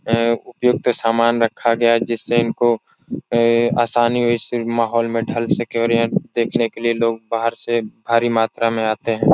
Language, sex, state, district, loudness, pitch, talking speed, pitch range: Hindi, male, Bihar, Jahanabad, -18 LUFS, 115 Hz, 180 wpm, 115-120 Hz